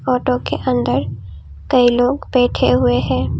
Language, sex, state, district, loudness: Hindi, female, Assam, Kamrup Metropolitan, -16 LUFS